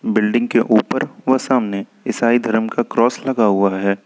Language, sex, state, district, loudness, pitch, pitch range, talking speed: Hindi, male, Uttar Pradesh, Lucknow, -17 LUFS, 115 Hz, 105-120 Hz, 175 wpm